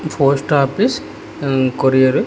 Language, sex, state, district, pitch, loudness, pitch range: Telugu, male, Telangana, Hyderabad, 140 Hz, -16 LUFS, 130-155 Hz